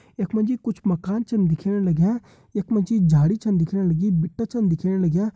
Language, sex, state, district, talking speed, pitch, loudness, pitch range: Hindi, male, Uttarakhand, Tehri Garhwal, 190 wpm, 195 Hz, -22 LUFS, 175-220 Hz